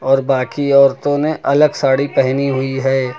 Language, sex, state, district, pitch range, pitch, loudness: Hindi, male, Uttar Pradesh, Lucknow, 135-140 Hz, 135 Hz, -15 LUFS